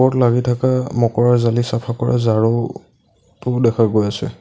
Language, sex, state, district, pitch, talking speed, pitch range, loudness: Assamese, male, Assam, Sonitpur, 120 Hz, 165 wpm, 115-125 Hz, -17 LUFS